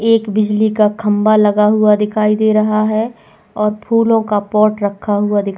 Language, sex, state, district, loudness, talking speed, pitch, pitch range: Hindi, female, Goa, North and South Goa, -14 LUFS, 170 wpm, 215 Hz, 210-215 Hz